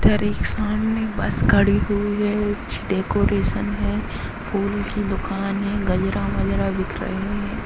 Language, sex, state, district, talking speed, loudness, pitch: Hindi, male, Uttar Pradesh, Varanasi, 150 wpm, -22 LUFS, 195 Hz